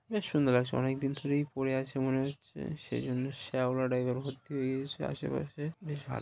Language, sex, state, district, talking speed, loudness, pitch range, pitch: Bengali, male, West Bengal, Malda, 205 wpm, -34 LUFS, 130-145 Hz, 135 Hz